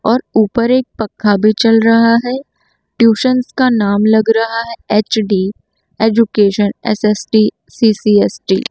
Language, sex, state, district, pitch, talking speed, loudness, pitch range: Hindi, female, Chandigarh, Chandigarh, 220 Hz, 130 wpm, -13 LUFS, 210-230 Hz